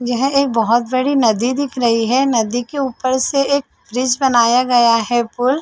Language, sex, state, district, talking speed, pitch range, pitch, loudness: Hindi, female, Chhattisgarh, Sarguja, 205 wpm, 235-270 Hz, 250 Hz, -16 LUFS